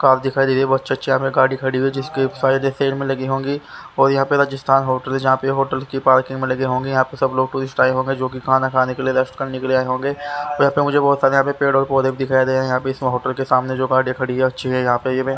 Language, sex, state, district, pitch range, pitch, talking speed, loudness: Hindi, male, Haryana, Charkhi Dadri, 130-135 Hz, 135 Hz, 315 wpm, -18 LUFS